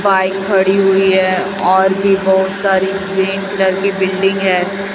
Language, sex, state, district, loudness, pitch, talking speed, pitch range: Hindi, female, Chhattisgarh, Raipur, -14 LUFS, 195 Hz, 155 wpm, 190-195 Hz